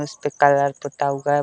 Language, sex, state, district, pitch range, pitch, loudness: Hindi, male, Uttar Pradesh, Deoria, 140-145 Hz, 145 Hz, -20 LUFS